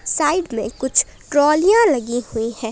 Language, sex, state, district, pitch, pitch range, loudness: Hindi, female, Jharkhand, Palamu, 260 Hz, 230-310 Hz, -17 LUFS